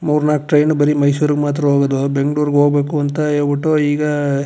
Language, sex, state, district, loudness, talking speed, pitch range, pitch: Kannada, male, Karnataka, Chamarajanagar, -15 LUFS, 200 wpm, 145-150 Hz, 145 Hz